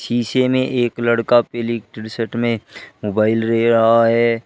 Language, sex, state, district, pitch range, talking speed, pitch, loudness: Hindi, male, Uttar Pradesh, Shamli, 115-120 Hz, 160 wpm, 115 Hz, -17 LUFS